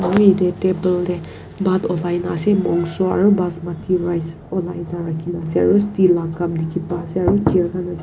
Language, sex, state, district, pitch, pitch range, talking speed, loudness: Nagamese, female, Nagaland, Kohima, 175 Hz, 170-185 Hz, 200 wpm, -19 LUFS